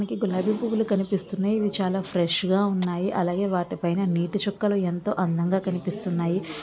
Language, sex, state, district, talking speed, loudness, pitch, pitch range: Telugu, female, Andhra Pradesh, Visakhapatnam, 155 wpm, -25 LUFS, 190 Hz, 180-200 Hz